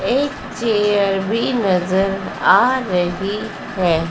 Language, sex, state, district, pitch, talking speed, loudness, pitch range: Hindi, female, Madhya Pradesh, Dhar, 200 Hz, 100 wpm, -18 LUFS, 185-230 Hz